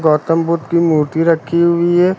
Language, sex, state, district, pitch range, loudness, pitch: Hindi, male, Uttar Pradesh, Lucknow, 160-170 Hz, -14 LUFS, 165 Hz